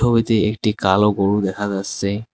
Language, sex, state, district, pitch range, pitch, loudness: Bengali, male, West Bengal, Cooch Behar, 100-110 Hz, 105 Hz, -19 LUFS